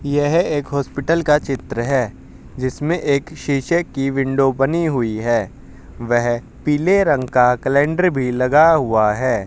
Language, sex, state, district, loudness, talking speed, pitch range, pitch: Hindi, male, Haryana, Jhajjar, -18 LUFS, 145 wpm, 125-150 Hz, 135 Hz